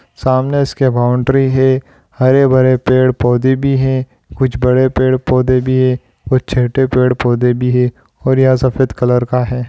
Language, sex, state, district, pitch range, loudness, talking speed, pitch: Hindi, male, Chhattisgarh, Raigarh, 125-130 Hz, -13 LUFS, 175 wpm, 130 Hz